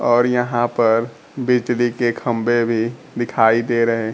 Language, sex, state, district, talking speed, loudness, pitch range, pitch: Hindi, male, Bihar, Kaimur, 145 wpm, -18 LUFS, 115-120 Hz, 120 Hz